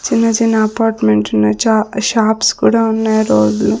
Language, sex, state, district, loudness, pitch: Telugu, female, Andhra Pradesh, Sri Satya Sai, -13 LUFS, 220 Hz